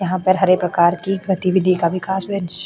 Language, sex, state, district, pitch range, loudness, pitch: Hindi, female, Uttarakhand, Tehri Garhwal, 180-190 Hz, -18 LUFS, 185 Hz